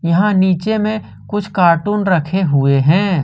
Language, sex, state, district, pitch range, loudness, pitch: Hindi, male, Jharkhand, Ranchi, 165-205 Hz, -15 LUFS, 185 Hz